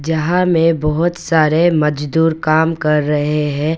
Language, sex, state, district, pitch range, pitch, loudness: Hindi, female, Arunachal Pradesh, Papum Pare, 150-165 Hz, 160 Hz, -15 LUFS